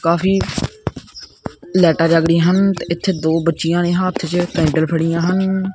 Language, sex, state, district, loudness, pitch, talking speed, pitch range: Punjabi, male, Punjab, Kapurthala, -16 LUFS, 170 Hz, 155 wpm, 165-185 Hz